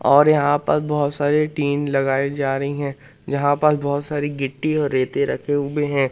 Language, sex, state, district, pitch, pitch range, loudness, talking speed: Hindi, male, Madhya Pradesh, Katni, 145 Hz, 140-150 Hz, -20 LUFS, 195 wpm